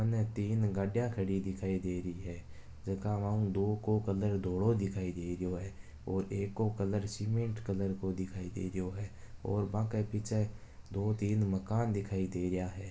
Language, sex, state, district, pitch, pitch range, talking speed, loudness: Marwari, male, Rajasthan, Nagaur, 100 Hz, 95-105 Hz, 185 wpm, -35 LUFS